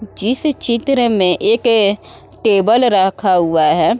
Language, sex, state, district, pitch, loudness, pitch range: Hindi, female, Uttar Pradesh, Muzaffarnagar, 220 Hz, -14 LUFS, 195-240 Hz